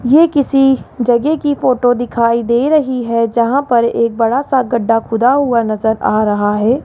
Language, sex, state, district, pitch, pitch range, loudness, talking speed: Hindi, male, Rajasthan, Jaipur, 240 Hz, 230-270 Hz, -13 LUFS, 185 wpm